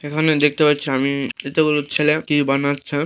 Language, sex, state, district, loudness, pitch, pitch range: Bengali, male, West Bengal, Dakshin Dinajpur, -18 LUFS, 145 Hz, 140-150 Hz